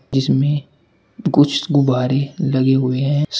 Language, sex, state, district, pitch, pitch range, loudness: Hindi, male, Uttar Pradesh, Shamli, 140 Hz, 135-145 Hz, -17 LUFS